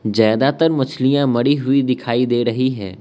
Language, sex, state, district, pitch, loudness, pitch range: Hindi, male, Arunachal Pradesh, Lower Dibang Valley, 130 Hz, -17 LUFS, 120-135 Hz